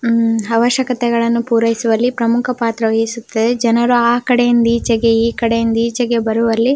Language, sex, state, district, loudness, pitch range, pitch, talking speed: Kannada, female, Karnataka, Belgaum, -15 LUFS, 230-240 Hz, 230 Hz, 135 wpm